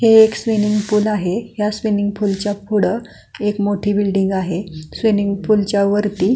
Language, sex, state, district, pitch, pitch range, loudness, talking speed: Marathi, female, Maharashtra, Pune, 205 Hz, 200-215 Hz, -18 LUFS, 140 wpm